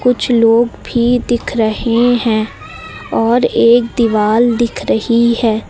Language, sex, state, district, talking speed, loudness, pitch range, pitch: Hindi, female, Uttar Pradesh, Lucknow, 125 wpm, -13 LUFS, 225-240 Hz, 235 Hz